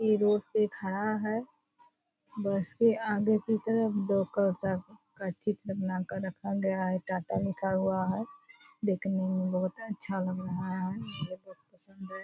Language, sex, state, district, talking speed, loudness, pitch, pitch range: Hindi, female, Bihar, Purnia, 145 wpm, -31 LUFS, 195 Hz, 185-215 Hz